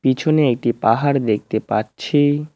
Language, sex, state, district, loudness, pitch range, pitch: Bengali, male, West Bengal, Cooch Behar, -18 LUFS, 120-145 Hz, 140 Hz